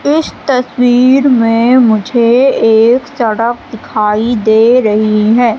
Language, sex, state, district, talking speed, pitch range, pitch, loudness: Hindi, female, Madhya Pradesh, Katni, 105 wpm, 220-250 Hz, 235 Hz, -10 LUFS